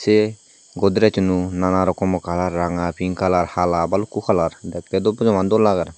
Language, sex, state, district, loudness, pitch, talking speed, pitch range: Chakma, male, Tripura, Dhalai, -19 LUFS, 95 Hz, 160 wpm, 90-100 Hz